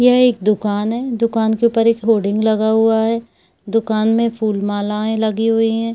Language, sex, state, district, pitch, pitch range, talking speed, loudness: Hindi, female, Jharkhand, Sahebganj, 225 Hz, 215-230 Hz, 190 wpm, -16 LUFS